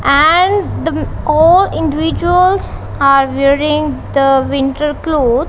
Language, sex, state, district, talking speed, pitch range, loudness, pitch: English, female, Punjab, Kapurthala, 90 wpm, 275-325 Hz, -12 LUFS, 300 Hz